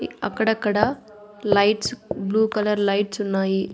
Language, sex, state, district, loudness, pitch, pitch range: Telugu, female, Andhra Pradesh, Annamaya, -22 LUFS, 210 Hz, 200-215 Hz